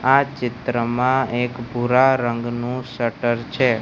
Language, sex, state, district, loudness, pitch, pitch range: Gujarati, male, Gujarat, Gandhinagar, -21 LUFS, 125 Hz, 120-130 Hz